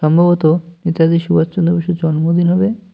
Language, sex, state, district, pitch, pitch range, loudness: Bengali, male, West Bengal, Cooch Behar, 170 Hz, 165-175 Hz, -14 LUFS